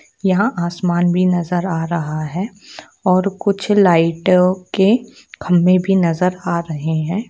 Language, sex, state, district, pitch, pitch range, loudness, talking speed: Hindi, female, Jharkhand, Jamtara, 180 Hz, 170-195 Hz, -17 LUFS, 140 wpm